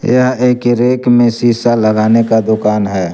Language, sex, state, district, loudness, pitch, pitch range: Hindi, male, Jharkhand, Garhwa, -11 LUFS, 120 Hz, 110-125 Hz